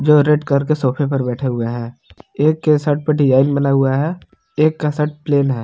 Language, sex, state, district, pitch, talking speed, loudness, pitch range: Hindi, male, Jharkhand, Palamu, 145 Hz, 235 wpm, -17 LUFS, 130-150 Hz